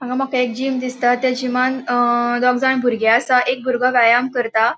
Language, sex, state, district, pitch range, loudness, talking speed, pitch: Konkani, female, Goa, North and South Goa, 240-255 Hz, -17 LUFS, 200 wpm, 250 Hz